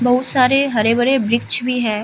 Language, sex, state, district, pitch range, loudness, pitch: Hindi, female, Bihar, Vaishali, 230-255 Hz, -15 LUFS, 245 Hz